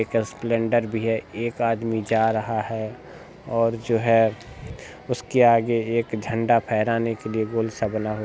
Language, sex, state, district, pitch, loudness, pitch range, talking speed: Hindi, male, Bihar, Jahanabad, 115 Hz, -23 LUFS, 110-115 Hz, 165 wpm